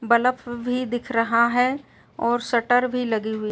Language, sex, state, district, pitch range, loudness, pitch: Hindi, female, Uttar Pradesh, Etah, 230-250 Hz, -22 LUFS, 240 Hz